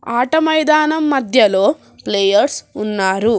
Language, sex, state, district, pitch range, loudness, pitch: Telugu, female, Telangana, Hyderabad, 205-305 Hz, -15 LUFS, 245 Hz